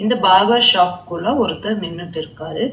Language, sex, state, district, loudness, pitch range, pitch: Tamil, female, Tamil Nadu, Chennai, -16 LUFS, 170-235 Hz, 185 Hz